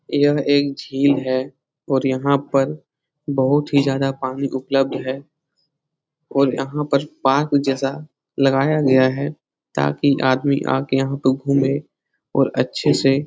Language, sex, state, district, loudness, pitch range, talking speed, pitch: Hindi, male, Bihar, Lakhisarai, -19 LUFS, 135-145 Hz, 140 wpm, 140 Hz